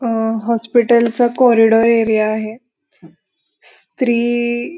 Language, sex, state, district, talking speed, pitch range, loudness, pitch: Marathi, female, Maharashtra, Pune, 100 wpm, 225-240 Hz, -14 LUFS, 235 Hz